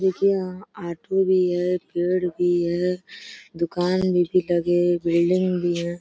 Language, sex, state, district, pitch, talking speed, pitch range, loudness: Hindi, female, Uttar Pradesh, Deoria, 180 Hz, 150 wpm, 175-185 Hz, -22 LUFS